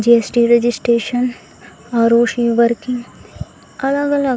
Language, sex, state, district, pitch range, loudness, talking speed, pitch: Garhwali, female, Uttarakhand, Tehri Garhwal, 235-250 Hz, -16 LUFS, 80 wpm, 235 Hz